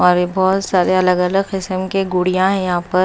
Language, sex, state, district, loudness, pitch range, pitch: Hindi, female, Maharashtra, Mumbai Suburban, -16 LUFS, 180-190 Hz, 185 Hz